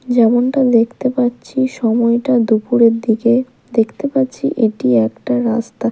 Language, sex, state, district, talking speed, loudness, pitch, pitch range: Bengali, female, Odisha, Malkangiri, 110 wpm, -15 LUFS, 235 Hz, 225-255 Hz